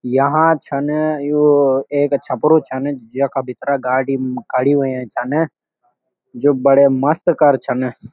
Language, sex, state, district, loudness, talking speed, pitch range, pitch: Garhwali, male, Uttarakhand, Uttarkashi, -16 LUFS, 125 wpm, 130-145 Hz, 140 Hz